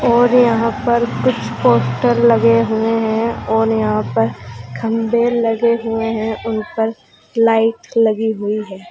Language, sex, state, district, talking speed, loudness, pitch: Hindi, female, Uttar Pradesh, Saharanpur, 135 wpm, -16 LUFS, 225 Hz